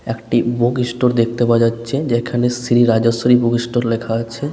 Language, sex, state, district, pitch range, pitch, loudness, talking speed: Bengali, male, West Bengal, Paschim Medinipur, 115-120 Hz, 120 Hz, -16 LUFS, 170 wpm